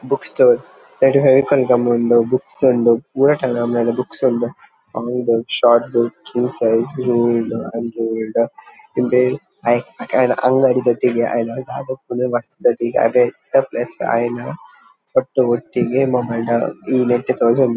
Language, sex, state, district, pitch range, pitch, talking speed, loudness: Tulu, male, Karnataka, Dakshina Kannada, 120-130 Hz, 125 Hz, 100 wpm, -17 LUFS